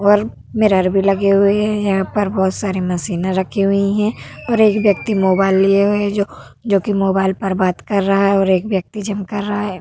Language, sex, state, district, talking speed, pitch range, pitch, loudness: Hindi, female, Uttar Pradesh, Hamirpur, 220 wpm, 190-205 Hz, 195 Hz, -16 LUFS